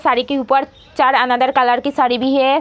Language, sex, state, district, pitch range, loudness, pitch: Hindi, female, Bihar, Jamui, 250-275 Hz, -15 LUFS, 265 Hz